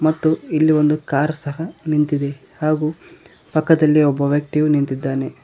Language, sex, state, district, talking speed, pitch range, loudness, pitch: Kannada, male, Karnataka, Koppal, 120 wpm, 145-155 Hz, -18 LUFS, 150 Hz